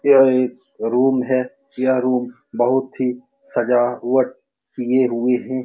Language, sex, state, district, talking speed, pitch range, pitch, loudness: Hindi, male, Bihar, Saran, 140 wpm, 125-130 Hz, 130 Hz, -19 LUFS